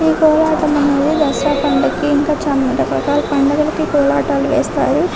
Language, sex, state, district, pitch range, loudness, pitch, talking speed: Telugu, female, Telangana, Karimnagar, 285-310 Hz, -15 LUFS, 295 Hz, 130 wpm